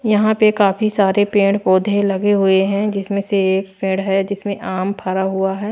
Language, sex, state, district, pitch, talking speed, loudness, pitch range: Hindi, female, Chhattisgarh, Raipur, 200 Hz, 200 wpm, -17 LUFS, 190-205 Hz